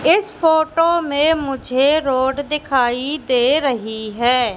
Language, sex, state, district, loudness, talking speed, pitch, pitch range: Hindi, female, Madhya Pradesh, Katni, -17 LUFS, 120 wpm, 275 Hz, 250-310 Hz